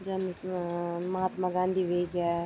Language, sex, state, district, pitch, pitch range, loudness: Garhwali, female, Uttarakhand, Tehri Garhwal, 180 Hz, 175-185 Hz, -31 LUFS